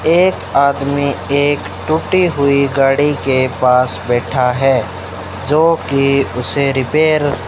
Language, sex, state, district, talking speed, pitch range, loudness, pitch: Hindi, male, Rajasthan, Bikaner, 110 wpm, 125-145 Hz, -14 LUFS, 140 Hz